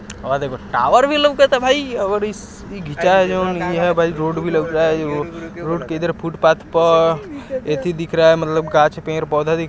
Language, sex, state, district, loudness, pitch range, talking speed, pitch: Hindi, male, Bihar, East Champaran, -17 LUFS, 160-190 Hz, 210 wpm, 165 Hz